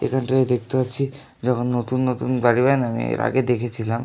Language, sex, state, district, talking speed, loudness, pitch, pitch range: Bengali, male, West Bengal, North 24 Parganas, 190 wpm, -21 LUFS, 125 Hz, 120-130 Hz